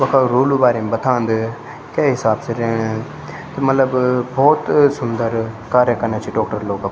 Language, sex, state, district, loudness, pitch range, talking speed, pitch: Garhwali, male, Uttarakhand, Tehri Garhwal, -17 LUFS, 110-130 Hz, 155 wpm, 120 Hz